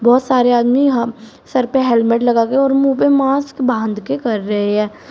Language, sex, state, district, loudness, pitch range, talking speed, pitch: Hindi, female, Uttar Pradesh, Shamli, -15 LUFS, 230-270 Hz, 210 wpm, 245 Hz